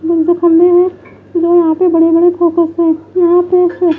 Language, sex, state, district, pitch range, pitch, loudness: Hindi, female, Bihar, West Champaran, 335-355 Hz, 345 Hz, -11 LUFS